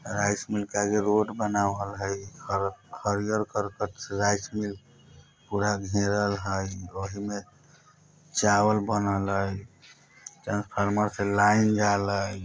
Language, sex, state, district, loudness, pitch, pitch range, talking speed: Bajjika, male, Bihar, Vaishali, -27 LUFS, 100 Hz, 100-105 Hz, 125 wpm